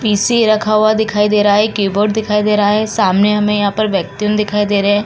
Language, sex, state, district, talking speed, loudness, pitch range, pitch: Hindi, female, Uttar Pradesh, Jalaun, 235 wpm, -13 LUFS, 205-215 Hz, 210 Hz